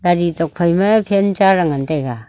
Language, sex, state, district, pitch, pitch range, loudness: Wancho, female, Arunachal Pradesh, Longding, 175 Hz, 155-195 Hz, -15 LUFS